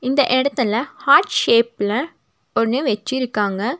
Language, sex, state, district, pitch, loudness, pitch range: Tamil, female, Tamil Nadu, Nilgiris, 245 Hz, -18 LUFS, 215-265 Hz